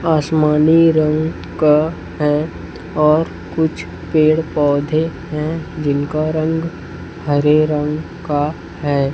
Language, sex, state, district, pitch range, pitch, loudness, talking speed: Hindi, male, Chhattisgarh, Raipur, 150-160 Hz, 155 Hz, -17 LUFS, 90 wpm